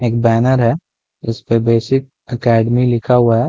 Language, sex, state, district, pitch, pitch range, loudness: Hindi, male, Chhattisgarh, Rajnandgaon, 120 Hz, 115-130 Hz, -15 LUFS